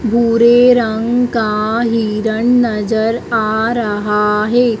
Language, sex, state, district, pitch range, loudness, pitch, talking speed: Hindi, female, Madhya Pradesh, Dhar, 215-235 Hz, -14 LUFS, 225 Hz, 100 wpm